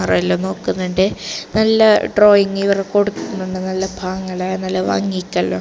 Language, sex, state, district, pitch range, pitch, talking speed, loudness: Malayalam, female, Kerala, Kasaragod, 185-200 Hz, 190 Hz, 105 wpm, -17 LUFS